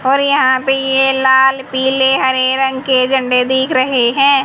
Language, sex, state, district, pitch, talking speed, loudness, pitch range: Hindi, female, Haryana, Jhajjar, 265 Hz, 175 wpm, -12 LUFS, 260-270 Hz